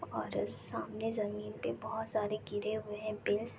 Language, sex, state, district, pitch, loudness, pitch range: Hindi, female, West Bengal, Jalpaiguri, 215 Hz, -38 LUFS, 210-220 Hz